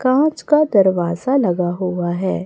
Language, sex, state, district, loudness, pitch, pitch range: Hindi, female, Chhattisgarh, Raipur, -17 LUFS, 190 Hz, 180-265 Hz